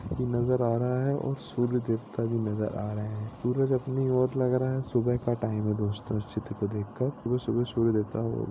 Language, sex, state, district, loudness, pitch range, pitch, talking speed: Hindi, male, Maharashtra, Nagpur, -29 LUFS, 105-125 Hz, 120 Hz, 210 wpm